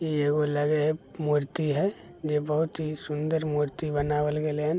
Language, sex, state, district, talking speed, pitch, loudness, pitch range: Maithili, male, Bihar, Begusarai, 190 wpm, 150 Hz, -28 LUFS, 150-155 Hz